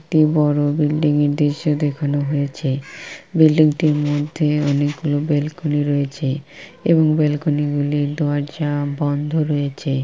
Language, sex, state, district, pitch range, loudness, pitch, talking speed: Bengali, female, West Bengal, Purulia, 145-155 Hz, -19 LUFS, 150 Hz, 115 wpm